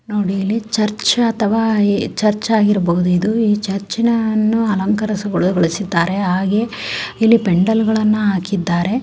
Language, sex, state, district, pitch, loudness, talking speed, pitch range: Kannada, female, Karnataka, Dharwad, 210 Hz, -16 LUFS, 95 wpm, 195-220 Hz